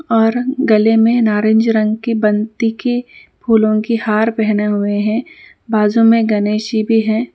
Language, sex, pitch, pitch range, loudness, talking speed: Urdu, female, 225 Hz, 215-230 Hz, -14 LUFS, 140 wpm